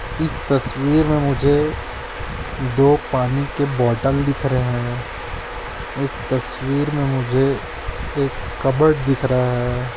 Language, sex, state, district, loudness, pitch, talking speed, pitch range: Hindi, male, Chhattisgarh, Bastar, -20 LUFS, 130 Hz, 120 wpm, 120-140 Hz